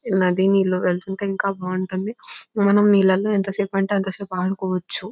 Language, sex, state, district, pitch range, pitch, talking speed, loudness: Telugu, female, Telangana, Nalgonda, 185-200 Hz, 195 Hz, 130 wpm, -21 LUFS